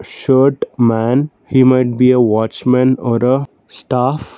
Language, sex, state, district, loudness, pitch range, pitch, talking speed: English, male, Karnataka, Bangalore, -14 LUFS, 120-130 Hz, 125 Hz, 150 wpm